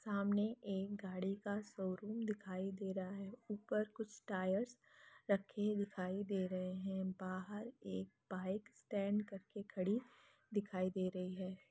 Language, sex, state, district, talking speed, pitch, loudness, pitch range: Hindi, female, Bihar, Lakhisarai, 145 wpm, 200 Hz, -43 LUFS, 185-210 Hz